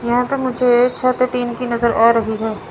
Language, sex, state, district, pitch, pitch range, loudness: Hindi, female, Chandigarh, Chandigarh, 245 Hz, 235-250 Hz, -17 LUFS